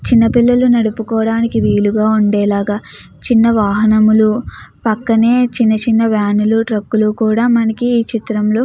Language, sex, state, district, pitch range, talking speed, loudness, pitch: Telugu, female, Andhra Pradesh, Chittoor, 215-230 Hz, 95 wpm, -13 LUFS, 225 Hz